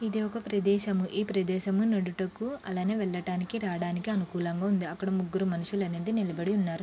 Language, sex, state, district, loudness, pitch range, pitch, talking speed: Telugu, female, Andhra Pradesh, Krishna, -30 LUFS, 180-205 Hz, 190 Hz, 140 wpm